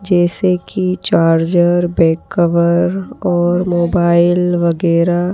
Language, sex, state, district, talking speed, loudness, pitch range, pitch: Hindi, female, Madhya Pradesh, Bhopal, 90 wpm, -14 LUFS, 170-180 Hz, 175 Hz